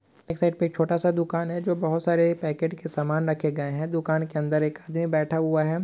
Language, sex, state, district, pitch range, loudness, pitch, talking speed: Hindi, male, West Bengal, Malda, 155-170 Hz, -25 LUFS, 160 Hz, 245 wpm